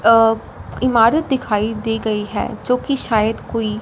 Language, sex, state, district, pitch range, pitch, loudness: Hindi, female, Punjab, Fazilka, 215-250 Hz, 225 Hz, -18 LUFS